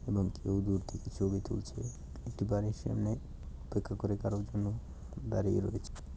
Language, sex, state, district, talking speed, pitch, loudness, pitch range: Bengali, male, West Bengal, Kolkata, 145 wpm, 100 Hz, -36 LUFS, 95-105 Hz